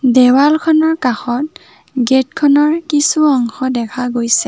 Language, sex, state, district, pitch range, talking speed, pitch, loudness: Assamese, female, Assam, Kamrup Metropolitan, 250-305 Hz, 105 wpm, 265 Hz, -13 LUFS